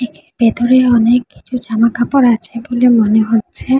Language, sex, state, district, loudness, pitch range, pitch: Bengali, female, West Bengal, Jhargram, -13 LUFS, 230-250 Hz, 240 Hz